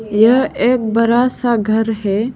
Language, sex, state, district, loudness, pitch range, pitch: Hindi, female, Arunachal Pradesh, Lower Dibang Valley, -15 LUFS, 220-245 Hz, 230 Hz